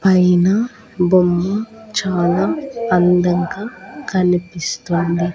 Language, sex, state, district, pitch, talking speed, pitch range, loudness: Telugu, female, Andhra Pradesh, Annamaya, 185 Hz, 55 wpm, 175-215 Hz, -17 LUFS